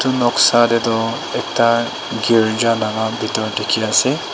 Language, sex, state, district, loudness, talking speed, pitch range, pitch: Nagamese, female, Nagaland, Dimapur, -16 LUFS, 110 wpm, 110-120 Hz, 115 Hz